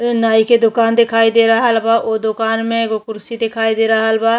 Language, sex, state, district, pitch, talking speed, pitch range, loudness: Bhojpuri, female, Uttar Pradesh, Ghazipur, 225 Hz, 230 wpm, 225-230 Hz, -14 LUFS